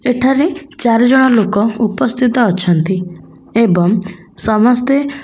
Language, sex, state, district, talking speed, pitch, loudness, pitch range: Odia, female, Odisha, Khordha, 105 wpm, 230 Hz, -13 LUFS, 200-255 Hz